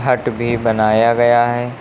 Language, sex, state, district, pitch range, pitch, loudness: Hindi, male, Uttar Pradesh, Lucknow, 115-120 Hz, 120 Hz, -15 LUFS